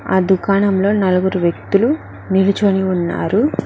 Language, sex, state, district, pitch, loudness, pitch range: Telugu, female, Telangana, Mahabubabad, 190 Hz, -16 LUFS, 185-200 Hz